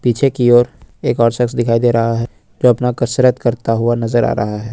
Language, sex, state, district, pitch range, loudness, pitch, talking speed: Hindi, male, Jharkhand, Ranchi, 115-125 Hz, -15 LUFS, 120 Hz, 240 wpm